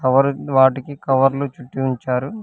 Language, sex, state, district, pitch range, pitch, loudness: Telugu, male, Telangana, Hyderabad, 130-140 Hz, 135 Hz, -18 LUFS